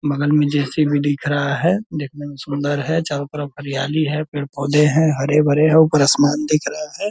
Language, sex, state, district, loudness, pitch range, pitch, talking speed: Hindi, male, Bihar, Purnia, -18 LUFS, 145-155 Hz, 145 Hz, 195 wpm